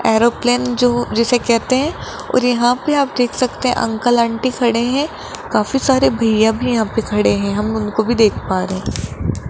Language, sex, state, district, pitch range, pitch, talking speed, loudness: Hindi, female, Rajasthan, Jaipur, 220-250 Hz, 240 Hz, 190 wpm, -16 LUFS